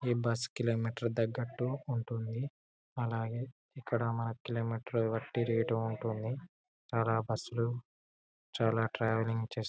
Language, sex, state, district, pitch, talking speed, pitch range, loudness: Telugu, male, Telangana, Karimnagar, 115 Hz, 120 wpm, 115-120 Hz, -35 LUFS